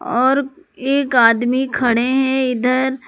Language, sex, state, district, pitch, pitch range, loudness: Hindi, female, Jharkhand, Palamu, 260 Hz, 245-270 Hz, -16 LUFS